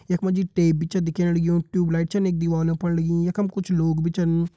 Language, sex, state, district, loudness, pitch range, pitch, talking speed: Hindi, male, Uttarakhand, Tehri Garhwal, -23 LUFS, 165-180 Hz, 170 Hz, 250 wpm